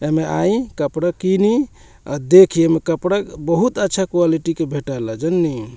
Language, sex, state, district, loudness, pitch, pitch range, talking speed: Bhojpuri, male, Bihar, Muzaffarpur, -17 LUFS, 170 Hz, 155-190 Hz, 145 wpm